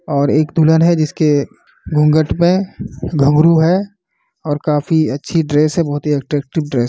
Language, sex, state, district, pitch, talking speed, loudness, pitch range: Hindi, male, Bihar, Kishanganj, 155 Hz, 155 wpm, -15 LUFS, 145-165 Hz